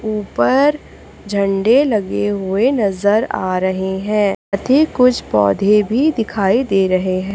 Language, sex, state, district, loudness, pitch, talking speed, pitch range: Hindi, female, Chhattisgarh, Raipur, -16 LUFS, 205 Hz, 130 wpm, 190-230 Hz